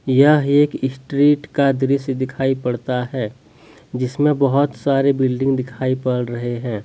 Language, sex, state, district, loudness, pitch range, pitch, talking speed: Hindi, male, Jharkhand, Deoghar, -18 LUFS, 125-140 Hz, 135 Hz, 140 wpm